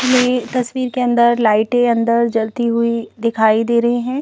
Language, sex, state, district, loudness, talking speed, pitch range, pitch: Hindi, female, Madhya Pradesh, Bhopal, -16 LUFS, 170 wpm, 230-250 Hz, 235 Hz